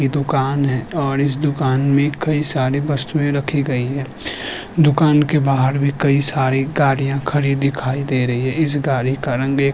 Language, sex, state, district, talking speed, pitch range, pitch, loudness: Hindi, male, Uttarakhand, Tehri Garhwal, 190 wpm, 135-145 Hz, 140 Hz, -18 LUFS